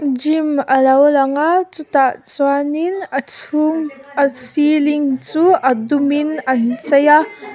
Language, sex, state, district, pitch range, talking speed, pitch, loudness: Mizo, female, Mizoram, Aizawl, 270-310 Hz, 145 wpm, 290 Hz, -15 LUFS